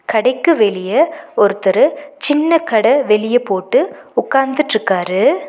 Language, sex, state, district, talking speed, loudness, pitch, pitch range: Tamil, female, Tamil Nadu, Nilgiris, 85 wpm, -15 LUFS, 245 Hz, 205-295 Hz